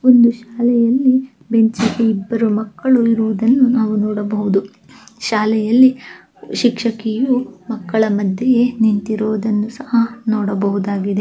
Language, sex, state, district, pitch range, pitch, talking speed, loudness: Kannada, female, Karnataka, Dakshina Kannada, 215-240 Hz, 225 Hz, 80 wpm, -16 LUFS